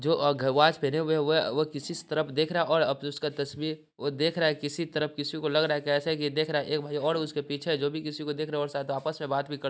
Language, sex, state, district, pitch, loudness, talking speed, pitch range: Hindi, male, Bihar, Sitamarhi, 150 Hz, -28 LUFS, 315 wpm, 145-155 Hz